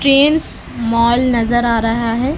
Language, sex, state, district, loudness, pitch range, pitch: Hindi, female, Bihar, Lakhisarai, -15 LUFS, 230-275 Hz, 240 Hz